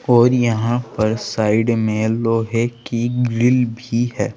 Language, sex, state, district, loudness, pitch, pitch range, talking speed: Hindi, male, Uttar Pradesh, Saharanpur, -18 LUFS, 115 Hz, 110-120 Hz, 135 wpm